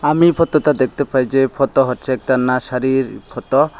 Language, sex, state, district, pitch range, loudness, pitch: Bengali, male, Tripura, Unakoti, 130-145 Hz, -16 LUFS, 135 Hz